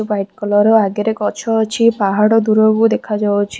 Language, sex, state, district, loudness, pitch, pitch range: Odia, female, Odisha, Khordha, -14 LUFS, 215 Hz, 205-220 Hz